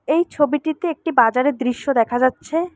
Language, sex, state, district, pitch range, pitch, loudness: Bengali, female, West Bengal, Alipurduar, 255-320 Hz, 290 Hz, -19 LUFS